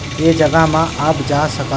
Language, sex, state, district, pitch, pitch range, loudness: Hindi, male, Chhattisgarh, Sarguja, 155 Hz, 140-160 Hz, -14 LUFS